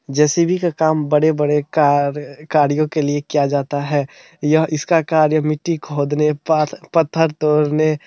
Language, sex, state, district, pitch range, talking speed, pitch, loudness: Hindi, male, Bihar, Araria, 145-155 Hz, 140 wpm, 150 Hz, -17 LUFS